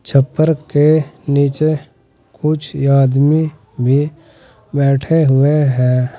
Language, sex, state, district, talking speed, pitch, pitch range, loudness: Hindi, male, Uttar Pradesh, Saharanpur, 85 wpm, 140 Hz, 135-155 Hz, -15 LUFS